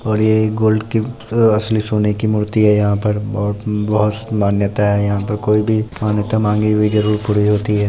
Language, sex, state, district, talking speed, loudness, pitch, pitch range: Hindi, male, Bihar, Muzaffarpur, 205 wpm, -16 LUFS, 105 Hz, 105-110 Hz